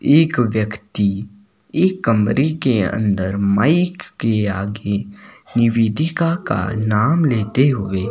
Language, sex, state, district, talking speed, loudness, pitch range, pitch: Hindi, male, Himachal Pradesh, Shimla, 105 wpm, -18 LUFS, 100-150 Hz, 110 Hz